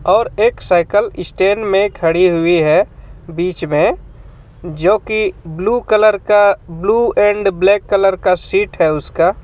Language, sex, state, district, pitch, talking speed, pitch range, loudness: Hindi, male, Jharkhand, Ranchi, 195 Hz, 155 wpm, 170-205 Hz, -14 LUFS